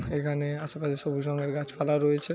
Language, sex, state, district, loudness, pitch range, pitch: Bengali, male, West Bengal, Paschim Medinipur, -29 LUFS, 145-150 Hz, 145 Hz